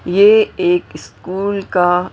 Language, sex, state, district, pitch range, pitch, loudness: Hindi, female, Maharashtra, Mumbai Suburban, 180-220 Hz, 200 Hz, -14 LUFS